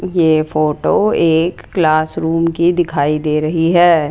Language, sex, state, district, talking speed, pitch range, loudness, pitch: Hindi, female, Rajasthan, Jaipur, 145 wpm, 155-170 Hz, -14 LUFS, 165 Hz